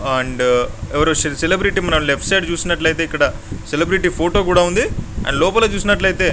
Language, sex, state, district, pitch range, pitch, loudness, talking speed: Telugu, male, Andhra Pradesh, Guntur, 140-190 Hz, 165 Hz, -17 LUFS, 115 wpm